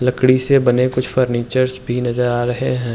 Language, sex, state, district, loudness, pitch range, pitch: Hindi, male, Uttar Pradesh, Hamirpur, -17 LUFS, 120-130 Hz, 125 Hz